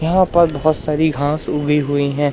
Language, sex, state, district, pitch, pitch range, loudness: Hindi, male, Madhya Pradesh, Umaria, 150 Hz, 145-160 Hz, -17 LUFS